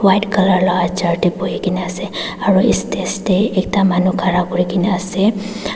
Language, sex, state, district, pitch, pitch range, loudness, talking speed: Nagamese, female, Nagaland, Dimapur, 185 Hz, 180-195 Hz, -16 LUFS, 165 wpm